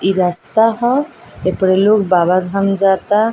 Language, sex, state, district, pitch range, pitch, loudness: Bhojpuri, female, Bihar, East Champaran, 185-220 Hz, 195 Hz, -14 LUFS